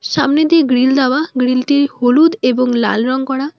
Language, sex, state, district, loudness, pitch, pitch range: Bengali, female, West Bengal, Alipurduar, -13 LUFS, 265 Hz, 250-285 Hz